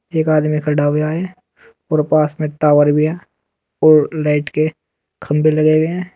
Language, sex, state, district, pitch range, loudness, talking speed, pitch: Hindi, male, Uttar Pradesh, Saharanpur, 150-160 Hz, -15 LUFS, 175 wpm, 155 Hz